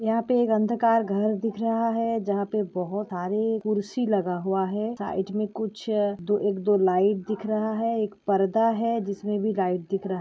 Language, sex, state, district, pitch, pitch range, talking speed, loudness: Hindi, female, Goa, North and South Goa, 210 Hz, 195-225 Hz, 210 wpm, -26 LUFS